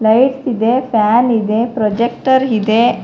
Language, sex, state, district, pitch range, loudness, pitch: Kannada, female, Karnataka, Bangalore, 220-250 Hz, -14 LUFS, 235 Hz